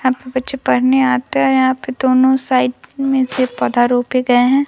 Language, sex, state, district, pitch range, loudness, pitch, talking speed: Hindi, female, Bihar, Vaishali, 245-260 Hz, -15 LUFS, 255 Hz, 220 wpm